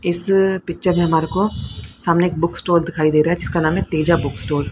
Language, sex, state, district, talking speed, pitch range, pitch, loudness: Hindi, female, Haryana, Rohtak, 255 wpm, 155-180 Hz, 170 Hz, -18 LUFS